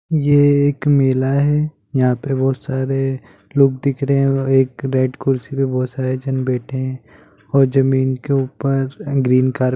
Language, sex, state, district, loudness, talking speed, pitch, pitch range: Hindi, male, Jharkhand, Sahebganj, -17 LUFS, 185 wpm, 135 Hz, 130-140 Hz